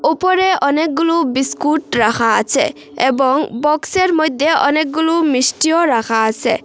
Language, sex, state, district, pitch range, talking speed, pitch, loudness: Bengali, female, Assam, Hailakandi, 265-330 Hz, 110 wpm, 310 Hz, -15 LUFS